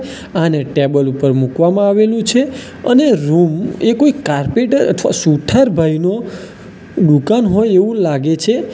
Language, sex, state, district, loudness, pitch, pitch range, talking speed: Gujarati, male, Gujarat, Valsad, -13 LUFS, 185 Hz, 155-230 Hz, 130 wpm